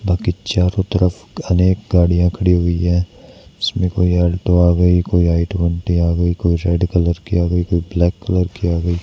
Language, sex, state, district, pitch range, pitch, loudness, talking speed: Hindi, male, Haryana, Charkhi Dadri, 85-90 Hz, 90 Hz, -16 LUFS, 200 wpm